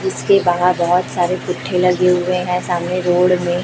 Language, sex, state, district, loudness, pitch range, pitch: Hindi, female, Chhattisgarh, Raipur, -16 LUFS, 175-180 Hz, 180 Hz